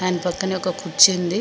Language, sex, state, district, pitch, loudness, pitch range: Telugu, female, Telangana, Mahabubabad, 185 Hz, -18 LUFS, 180-190 Hz